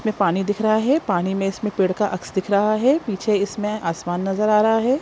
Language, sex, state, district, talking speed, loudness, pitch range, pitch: Hindi, female, Bihar, Jamui, 250 wpm, -20 LUFS, 190-215 Hz, 205 Hz